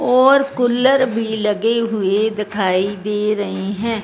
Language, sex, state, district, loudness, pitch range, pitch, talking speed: Hindi, female, Punjab, Fazilka, -17 LUFS, 205-245 Hz, 220 Hz, 135 wpm